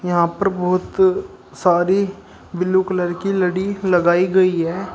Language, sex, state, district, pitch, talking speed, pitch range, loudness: Hindi, male, Uttar Pradesh, Shamli, 185 Hz, 135 wpm, 180-195 Hz, -18 LUFS